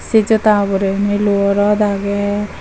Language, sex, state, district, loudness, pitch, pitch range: Chakma, female, Tripura, Dhalai, -15 LUFS, 205 Hz, 200-210 Hz